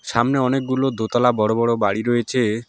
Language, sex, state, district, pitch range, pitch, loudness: Bengali, male, West Bengal, Alipurduar, 110-130 Hz, 120 Hz, -19 LUFS